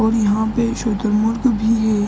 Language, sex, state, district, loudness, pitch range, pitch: Hindi, male, Uttar Pradesh, Ghazipur, -18 LUFS, 215-230 Hz, 220 Hz